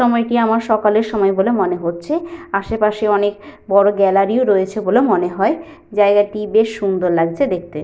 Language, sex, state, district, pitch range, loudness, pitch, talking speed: Bengali, female, West Bengal, Paschim Medinipur, 195-225 Hz, -16 LUFS, 205 Hz, 160 wpm